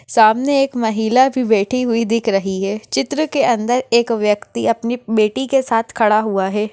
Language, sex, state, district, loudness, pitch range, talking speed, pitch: Hindi, female, Maharashtra, Dhule, -16 LUFS, 215-250 Hz, 185 wpm, 230 Hz